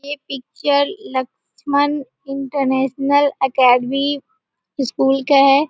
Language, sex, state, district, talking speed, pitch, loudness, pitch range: Hindi, female, Bihar, Jahanabad, 85 wpm, 275 Hz, -17 LUFS, 270-285 Hz